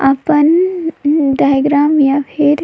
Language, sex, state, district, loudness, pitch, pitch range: Sadri, female, Chhattisgarh, Jashpur, -12 LUFS, 290 Hz, 280-310 Hz